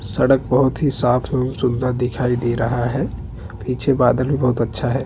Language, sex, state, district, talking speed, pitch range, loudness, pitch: Hindi, male, Chhattisgarh, Bastar, 190 wpm, 120-130 Hz, -18 LUFS, 125 Hz